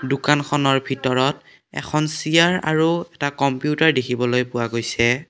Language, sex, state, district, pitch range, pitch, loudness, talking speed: Assamese, male, Assam, Kamrup Metropolitan, 130-155 Hz, 140 Hz, -20 LUFS, 115 wpm